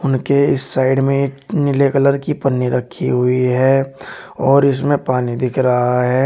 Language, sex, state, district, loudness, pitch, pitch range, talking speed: Hindi, male, Uttar Pradesh, Shamli, -16 LUFS, 135 Hz, 125-140 Hz, 165 wpm